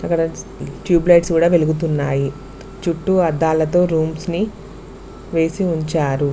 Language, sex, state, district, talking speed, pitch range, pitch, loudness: Telugu, female, Telangana, Mahabubabad, 105 wpm, 155-175 Hz, 165 Hz, -18 LUFS